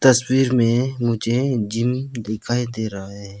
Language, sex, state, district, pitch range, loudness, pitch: Hindi, male, Arunachal Pradesh, Lower Dibang Valley, 110-125 Hz, -21 LUFS, 120 Hz